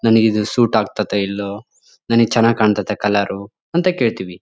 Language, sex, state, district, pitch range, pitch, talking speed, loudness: Kannada, male, Karnataka, Bellary, 100-115 Hz, 105 Hz, 150 wpm, -17 LUFS